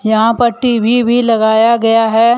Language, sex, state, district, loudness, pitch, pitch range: Hindi, male, Jharkhand, Deoghar, -11 LUFS, 230 Hz, 225-240 Hz